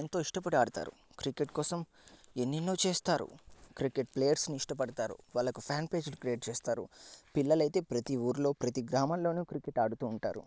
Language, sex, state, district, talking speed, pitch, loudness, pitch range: Telugu, male, Andhra Pradesh, Guntur, 145 wpm, 140 Hz, -34 LUFS, 125-155 Hz